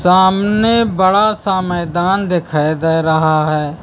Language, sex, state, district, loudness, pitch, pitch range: Hindi, male, Uttar Pradesh, Lucknow, -13 LUFS, 180 Hz, 160-195 Hz